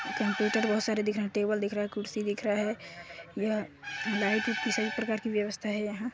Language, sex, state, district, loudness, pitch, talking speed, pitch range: Hindi, male, Chhattisgarh, Sarguja, -31 LUFS, 210 Hz, 195 wpm, 205-220 Hz